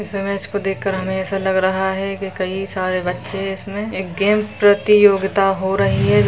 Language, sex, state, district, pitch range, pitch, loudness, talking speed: Hindi, female, Bihar, Sitamarhi, 190-200 Hz, 195 Hz, -18 LUFS, 200 wpm